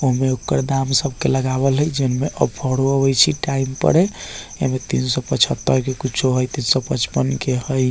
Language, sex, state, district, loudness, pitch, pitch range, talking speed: Bajjika, male, Bihar, Vaishali, -19 LUFS, 130 Hz, 130-135 Hz, 195 wpm